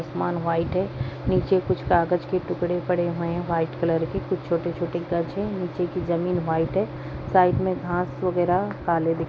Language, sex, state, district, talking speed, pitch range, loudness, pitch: Hindi, female, Bihar, Jahanabad, 195 wpm, 165-180 Hz, -25 LUFS, 175 Hz